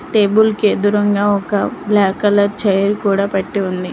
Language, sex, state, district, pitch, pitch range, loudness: Telugu, female, Telangana, Mahabubabad, 205 Hz, 200-210 Hz, -15 LUFS